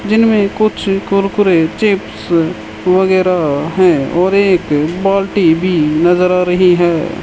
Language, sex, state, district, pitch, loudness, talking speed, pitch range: Hindi, male, Rajasthan, Bikaner, 180 Hz, -12 LUFS, 125 wpm, 170-195 Hz